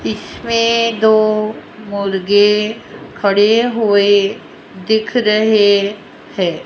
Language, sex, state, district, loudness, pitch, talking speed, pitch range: Hindi, female, Rajasthan, Jaipur, -14 LUFS, 210 Hz, 70 wpm, 200-220 Hz